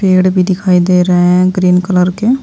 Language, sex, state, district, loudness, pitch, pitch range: Hindi, female, Uttar Pradesh, Saharanpur, -10 LUFS, 185 Hz, 180-185 Hz